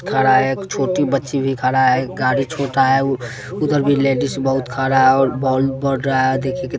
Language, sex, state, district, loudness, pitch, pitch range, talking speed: Hindi, male, Bihar, West Champaran, -17 LUFS, 135 Hz, 130-135 Hz, 230 wpm